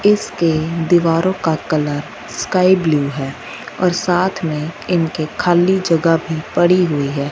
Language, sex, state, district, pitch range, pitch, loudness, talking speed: Hindi, female, Punjab, Fazilka, 155-180 Hz, 165 Hz, -16 LUFS, 140 wpm